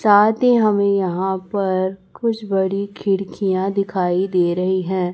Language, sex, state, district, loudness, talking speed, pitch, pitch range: Hindi, male, Chhattisgarh, Raipur, -19 LUFS, 130 wpm, 195 Hz, 185-200 Hz